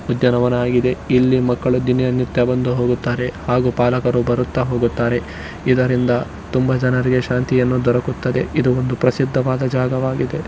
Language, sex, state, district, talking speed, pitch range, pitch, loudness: Kannada, male, Karnataka, Shimoga, 125 wpm, 120-130 Hz, 125 Hz, -18 LUFS